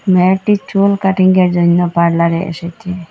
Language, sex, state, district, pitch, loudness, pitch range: Bengali, female, Assam, Hailakandi, 180 Hz, -13 LUFS, 170-190 Hz